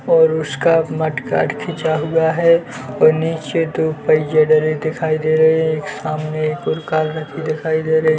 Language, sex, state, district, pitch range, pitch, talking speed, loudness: Hindi, male, Chhattisgarh, Bilaspur, 155-160 Hz, 155 Hz, 170 wpm, -17 LUFS